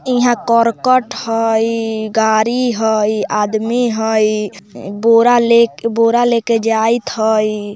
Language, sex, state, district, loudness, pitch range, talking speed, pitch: Bajjika, female, Bihar, Vaishali, -14 LUFS, 220-235 Hz, 100 wpm, 225 Hz